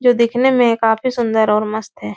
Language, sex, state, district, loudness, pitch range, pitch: Hindi, female, Uttar Pradesh, Etah, -16 LUFS, 220-245 Hz, 230 Hz